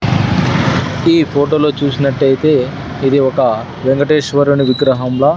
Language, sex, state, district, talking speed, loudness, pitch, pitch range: Telugu, male, Andhra Pradesh, Sri Satya Sai, 80 wpm, -13 LUFS, 140 Hz, 135-145 Hz